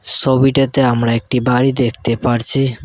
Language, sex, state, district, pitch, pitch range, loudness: Bengali, male, West Bengal, Cooch Behar, 125 Hz, 115-135 Hz, -14 LUFS